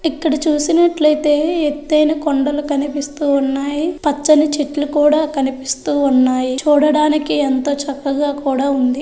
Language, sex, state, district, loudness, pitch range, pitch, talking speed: Telugu, female, Andhra Pradesh, Chittoor, -16 LUFS, 280-305 Hz, 295 Hz, 105 wpm